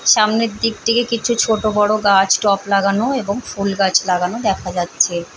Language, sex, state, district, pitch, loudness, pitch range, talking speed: Bengali, female, West Bengal, Paschim Medinipur, 210 Hz, -16 LUFS, 195-230 Hz, 165 wpm